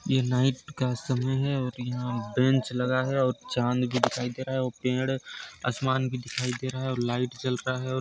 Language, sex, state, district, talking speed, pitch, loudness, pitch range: Hindi, male, Chhattisgarh, Sarguja, 230 wpm, 130 Hz, -28 LUFS, 125-130 Hz